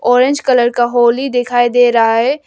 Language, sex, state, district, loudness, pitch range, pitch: Hindi, female, Arunachal Pradesh, Lower Dibang Valley, -12 LUFS, 240-255 Hz, 245 Hz